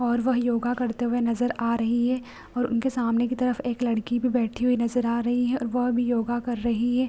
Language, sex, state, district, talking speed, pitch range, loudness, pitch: Hindi, female, Bihar, Supaul, 255 wpm, 235-245 Hz, -25 LUFS, 245 Hz